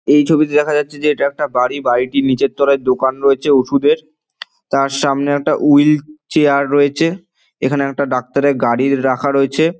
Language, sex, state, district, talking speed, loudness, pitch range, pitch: Bengali, male, West Bengal, Dakshin Dinajpur, 165 wpm, -15 LUFS, 135-150 Hz, 140 Hz